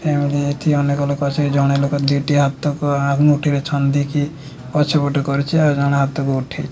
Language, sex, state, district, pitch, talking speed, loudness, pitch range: Odia, male, Odisha, Nuapada, 145 Hz, 150 wpm, -18 LUFS, 140-145 Hz